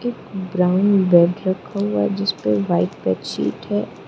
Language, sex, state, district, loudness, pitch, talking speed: Hindi, female, Arunachal Pradesh, Lower Dibang Valley, -19 LUFS, 175 Hz, 145 wpm